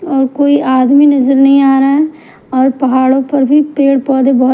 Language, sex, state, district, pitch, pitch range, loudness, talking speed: Hindi, female, Haryana, Jhajjar, 270 Hz, 265-285 Hz, -10 LUFS, 185 wpm